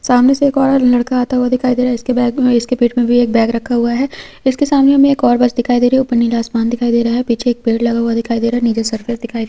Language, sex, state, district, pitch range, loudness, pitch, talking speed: Hindi, female, Chhattisgarh, Korba, 235-250 Hz, -14 LUFS, 245 Hz, 330 wpm